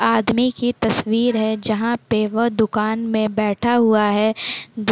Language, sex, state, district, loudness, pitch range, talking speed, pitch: Hindi, female, Chhattisgarh, Sukma, -19 LUFS, 215-235 Hz, 170 wpm, 220 Hz